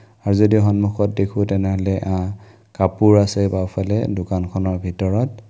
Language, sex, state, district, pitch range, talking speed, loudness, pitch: Assamese, male, Assam, Kamrup Metropolitan, 95-105 Hz, 130 wpm, -19 LUFS, 100 Hz